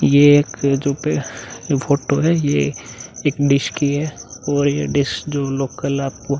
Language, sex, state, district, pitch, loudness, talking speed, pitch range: Hindi, male, Uttar Pradesh, Muzaffarnagar, 140 Hz, -18 LUFS, 180 wpm, 135-145 Hz